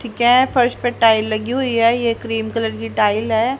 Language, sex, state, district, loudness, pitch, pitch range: Hindi, female, Haryana, Charkhi Dadri, -17 LUFS, 230 Hz, 225-245 Hz